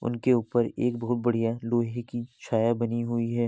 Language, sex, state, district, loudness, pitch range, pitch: Hindi, male, Uttar Pradesh, Varanasi, -27 LUFS, 115-120 Hz, 120 Hz